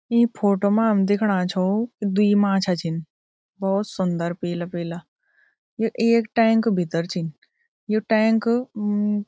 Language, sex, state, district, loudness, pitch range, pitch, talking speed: Garhwali, female, Uttarakhand, Tehri Garhwal, -22 LUFS, 180-225 Hz, 205 Hz, 135 wpm